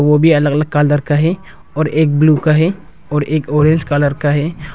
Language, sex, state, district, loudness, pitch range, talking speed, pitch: Hindi, male, Arunachal Pradesh, Longding, -14 LUFS, 145-155 Hz, 230 wpm, 150 Hz